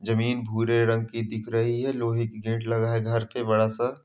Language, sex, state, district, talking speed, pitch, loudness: Hindi, male, Chhattisgarh, Balrampur, 235 wpm, 115 Hz, -26 LUFS